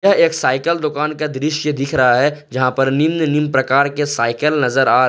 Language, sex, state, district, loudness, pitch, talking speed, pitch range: Hindi, male, Jharkhand, Ranchi, -16 LUFS, 145 Hz, 200 wpm, 130-150 Hz